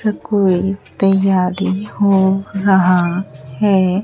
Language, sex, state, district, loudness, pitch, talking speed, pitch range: Hindi, female, Bihar, Katihar, -15 LUFS, 195 Hz, 90 wpm, 185-200 Hz